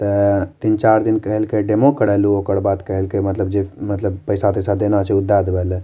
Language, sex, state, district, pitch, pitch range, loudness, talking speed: Maithili, male, Bihar, Madhepura, 100 Hz, 100-105 Hz, -17 LUFS, 225 wpm